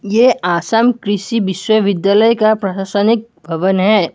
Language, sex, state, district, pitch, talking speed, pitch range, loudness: Hindi, male, Assam, Kamrup Metropolitan, 205 Hz, 115 wpm, 190-225 Hz, -14 LUFS